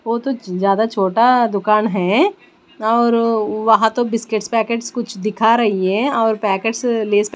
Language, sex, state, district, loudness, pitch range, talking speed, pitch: Hindi, female, Bihar, West Champaran, -17 LUFS, 210-235 Hz, 145 wpm, 225 Hz